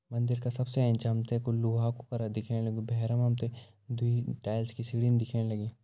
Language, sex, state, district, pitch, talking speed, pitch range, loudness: Garhwali, male, Uttarakhand, Uttarkashi, 115 Hz, 225 wpm, 115-120 Hz, -32 LUFS